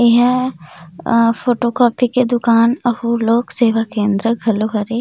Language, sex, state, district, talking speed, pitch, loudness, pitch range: Chhattisgarhi, female, Chhattisgarh, Rajnandgaon, 130 wpm, 235 Hz, -15 LUFS, 225-245 Hz